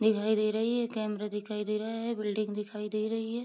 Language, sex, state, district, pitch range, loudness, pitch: Hindi, female, Bihar, Sitamarhi, 210-225 Hz, -32 LUFS, 215 Hz